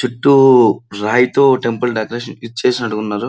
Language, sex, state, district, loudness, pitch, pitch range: Telugu, male, Andhra Pradesh, Srikakulam, -14 LUFS, 120 Hz, 110-125 Hz